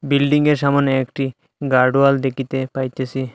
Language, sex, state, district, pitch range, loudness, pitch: Bengali, male, Assam, Hailakandi, 130-140 Hz, -18 LUFS, 135 Hz